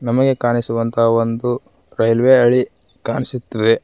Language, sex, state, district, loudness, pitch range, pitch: Kannada, male, Karnataka, Koppal, -17 LUFS, 115-125 Hz, 120 Hz